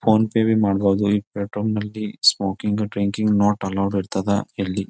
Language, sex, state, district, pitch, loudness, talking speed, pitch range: Kannada, male, Karnataka, Bijapur, 100 Hz, -21 LUFS, 160 wpm, 100-105 Hz